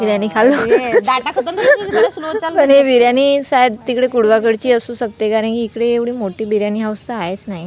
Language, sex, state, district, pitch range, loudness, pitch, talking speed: Marathi, female, Maharashtra, Gondia, 220-260 Hz, -14 LUFS, 240 Hz, 135 wpm